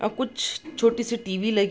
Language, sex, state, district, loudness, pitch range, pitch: Hindi, female, Bihar, East Champaran, -25 LUFS, 210-255 Hz, 230 Hz